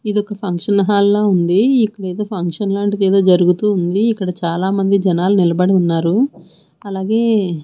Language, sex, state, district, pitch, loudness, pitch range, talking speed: Telugu, female, Andhra Pradesh, Manyam, 195 Hz, -15 LUFS, 180-210 Hz, 120 wpm